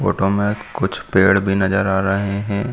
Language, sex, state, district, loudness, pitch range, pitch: Hindi, male, Chhattisgarh, Bilaspur, -18 LUFS, 95-100 Hz, 100 Hz